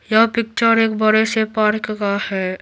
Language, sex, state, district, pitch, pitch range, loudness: Hindi, female, Bihar, Patna, 215 Hz, 210-225 Hz, -17 LUFS